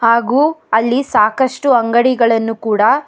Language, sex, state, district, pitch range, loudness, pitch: Kannada, female, Karnataka, Bangalore, 225-265 Hz, -14 LUFS, 235 Hz